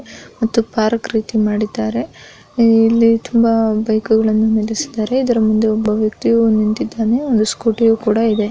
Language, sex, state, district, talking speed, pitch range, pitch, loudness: Kannada, female, Karnataka, Bellary, 120 wpm, 215-230 Hz, 225 Hz, -15 LUFS